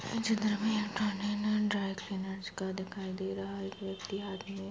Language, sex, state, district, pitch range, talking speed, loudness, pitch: Hindi, female, Chhattisgarh, Bastar, 195-210 Hz, 140 wpm, -35 LUFS, 195 Hz